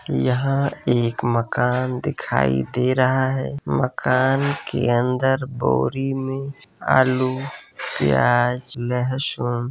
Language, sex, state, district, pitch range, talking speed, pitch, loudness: Hindi, male, Uttar Pradesh, Varanasi, 120-135 Hz, 100 wpm, 125 Hz, -21 LUFS